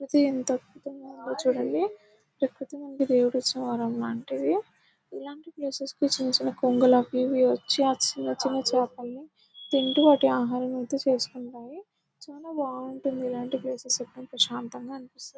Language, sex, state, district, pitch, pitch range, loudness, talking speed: Telugu, female, Telangana, Nalgonda, 260 Hz, 250-275 Hz, -26 LUFS, 150 wpm